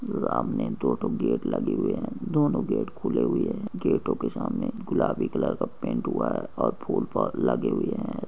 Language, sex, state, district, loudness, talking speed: Hindi, male, Andhra Pradesh, Krishna, -27 LUFS, 190 wpm